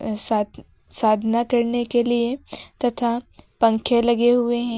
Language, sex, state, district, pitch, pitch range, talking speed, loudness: Hindi, female, Uttar Pradesh, Lucknow, 235 Hz, 230-240 Hz, 115 wpm, -21 LUFS